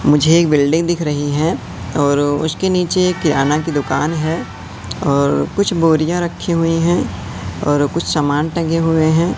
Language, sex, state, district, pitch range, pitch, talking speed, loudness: Hindi, male, Madhya Pradesh, Katni, 145-170 Hz, 155 Hz, 160 wpm, -16 LUFS